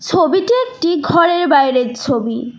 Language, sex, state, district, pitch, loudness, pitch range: Bengali, female, West Bengal, Cooch Behar, 330 Hz, -14 LUFS, 255-345 Hz